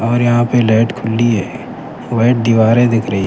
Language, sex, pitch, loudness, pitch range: Urdu, male, 115 Hz, -13 LUFS, 110-120 Hz